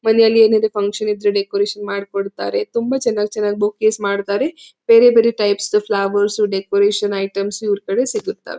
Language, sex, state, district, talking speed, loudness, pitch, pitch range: Kannada, female, Karnataka, Belgaum, 155 wpm, -17 LUFS, 210 Hz, 200-225 Hz